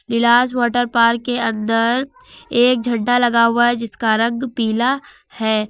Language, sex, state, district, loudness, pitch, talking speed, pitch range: Hindi, female, Uttar Pradesh, Lucknow, -17 LUFS, 240 Hz, 145 wpm, 230-245 Hz